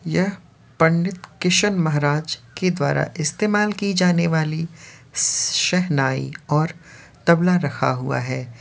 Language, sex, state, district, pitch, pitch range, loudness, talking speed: Hindi, male, Uttar Pradesh, Varanasi, 160 Hz, 145-180 Hz, -20 LUFS, 110 wpm